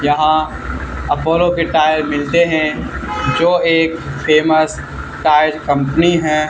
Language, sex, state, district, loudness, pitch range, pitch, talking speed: Hindi, male, Haryana, Charkhi Dadri, -15 LUFS, 140-160 Hz, 155 Hz, 110 wpm